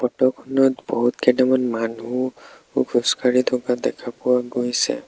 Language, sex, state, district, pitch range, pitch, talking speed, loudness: Assamese, male, Assam, Sonitpur, 120-130 Hz, 125 Hz, 105 wpm, -21 LUFS